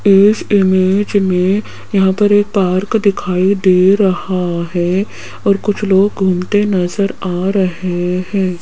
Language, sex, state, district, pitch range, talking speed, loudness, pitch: Hindi, female, Rajasthan, Jaipur, 185-200 Hz, 130 wpm, -14 LUFS, 190 Hz